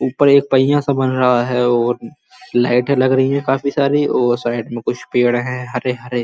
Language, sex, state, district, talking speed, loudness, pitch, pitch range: Hindi, male, Uttar Pradesh, Muzaffarnagar, 210 wpm, -16 LUFS, 125 Hz, 120-140 Hz